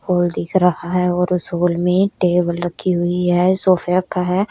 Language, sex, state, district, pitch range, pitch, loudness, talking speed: Hindi, female, Haryana, Rohtak, 175-185 Hz, 180 Hz, -17 LUFS, 200 wpm